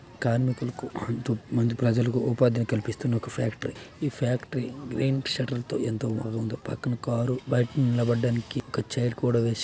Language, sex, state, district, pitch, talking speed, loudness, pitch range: Telugu, male, Telangana, Nalgonda, 120 Hz, 145 wpm, -28 LUFS, 115-130 Hz